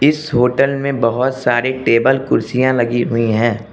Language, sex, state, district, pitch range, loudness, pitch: Hindi, male, Arunachal Pradesh, Lower Dibang Valley, 120-135 Hz, -15 LUFS, 125 Hz